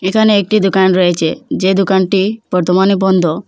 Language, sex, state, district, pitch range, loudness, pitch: Bengali, female, Assam, Hailakandi, 185-200 Hz, -12 LUFS, 190 Hz